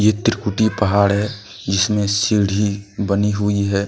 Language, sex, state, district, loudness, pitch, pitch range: Hindi, male, Jharkhand, Deoghar, -18 LUFS, 105 Hz, 100-105 Hz